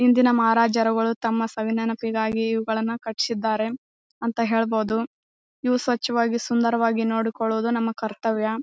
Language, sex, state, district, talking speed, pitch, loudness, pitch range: Kannada, female, Karnataka, Bijapur, 105 wpm, 225 Hz, -23 LUFS, 225-235 Hz